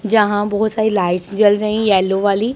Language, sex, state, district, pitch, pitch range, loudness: Hindi, female, Punjab, Pathankot, 210 Hz, 200-215 Hz, -16 LUFS